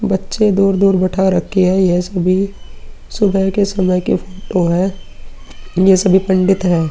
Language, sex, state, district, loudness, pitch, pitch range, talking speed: Hindi, male, Uttar Pradesh, Muzaffarnagar, -14 LUFS, 190 Hz, 180-195 Hz, 150 wpm